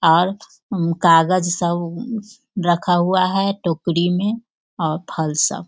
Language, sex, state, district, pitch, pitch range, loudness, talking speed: Hindi, female, Bihar, Sitamarhi, 175 Hz, 170-195 Hz, -19 LUFS, 125 wpm